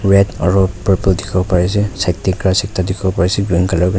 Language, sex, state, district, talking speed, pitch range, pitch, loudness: Nagamese, male, Nagaland, Kohima, 255 wpm, 90-100 Hz, 95 Hz, -15 LUFS